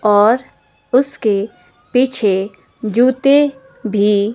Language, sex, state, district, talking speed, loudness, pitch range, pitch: Hindi, female, Himachal Pradesh, Shimla, 70 wpm, -15 LUFS, 210-260 Hz, 230 Hz